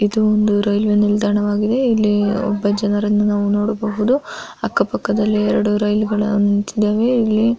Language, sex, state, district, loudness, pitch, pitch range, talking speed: Kannada, female, Karnataka, Mysore, -17 LUFS, 210 Hz, 205-215 Hz, 120 wpm